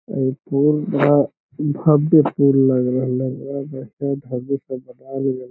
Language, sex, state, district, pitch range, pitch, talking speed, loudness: Magahi, male, Bihar, Lakhisarai, 130-145 Hz, 140 Hz, 150 wpm, -19 LUFS